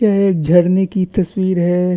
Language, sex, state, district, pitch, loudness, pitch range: Hindi, male, Chhattisgarh, Bastar, 185 Hz, -15 LUFS, 180-195 Hz